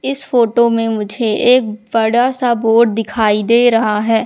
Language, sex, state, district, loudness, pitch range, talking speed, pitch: Hindi, female, Madhya Pradesh, Katni, -14 LUFS, 220-240 Hz, 170 wpm, 230 Hz